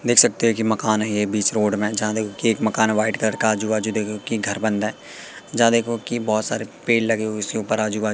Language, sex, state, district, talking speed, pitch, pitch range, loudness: Hindi, male, Madhya Pradesh, Katni, 295 wpm, 110 Hz, 105-110 Hz, -21 LUFS